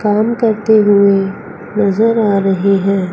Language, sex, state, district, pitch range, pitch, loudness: Hindi, female, Chandigarh, Chandigarh, 195-215 Hz, 205 Hz, -13 LUFS